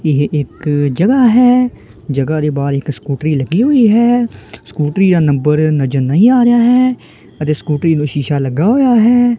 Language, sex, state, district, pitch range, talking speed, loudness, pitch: Punjabi, male, Punjab, Kapurthala, 145-240 Hz, 170 wpm, -12 LUFS, 155 Hz